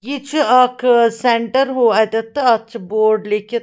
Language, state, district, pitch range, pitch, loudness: Kashmiri, Punjab, Kapurthala, 220-255 Hz, 235 Hz, -15 LUFS